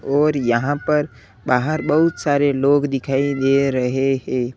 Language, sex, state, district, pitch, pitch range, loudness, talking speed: Hindi, male, Uttar Pradesh, Lalitpur, 140 Hz, 130-145 Hz, -18 LUFS, 145 wpm